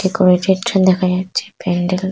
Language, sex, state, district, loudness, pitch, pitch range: Bengali, female, West Bengal, Purulia, -16 LUFS, 185 Hz, 180-190 Hz